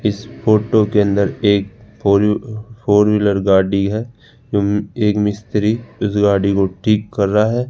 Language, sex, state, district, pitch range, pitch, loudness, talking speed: Hindi, male, Rajasthan, Jaipur, 100-110 Hz, 105 Hz, -16 LUFS, 155 wpm